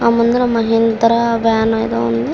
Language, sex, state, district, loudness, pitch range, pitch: Telugu, female, Andhra Pradesh, Srikakulam, -14 LUFS, 225-235 Hz, 230 Hz